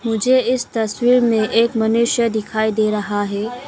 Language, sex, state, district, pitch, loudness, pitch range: Hindi, female, Arunachal Pradesh, Lower Dibang Valley, 225 Hz, -17 LUFS, 215-240 Hz